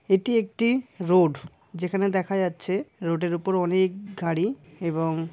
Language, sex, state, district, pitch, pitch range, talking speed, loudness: Bengali, female, West Bengal, Paschim Medinipur, 185 Hz, 170-195 Hz, 145 wpm, -25 LUFS